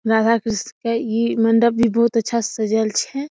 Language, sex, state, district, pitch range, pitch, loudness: Maithili, female, Bihar, Samastipur, 220-235 Hz, 230 Hz, -19 LUFS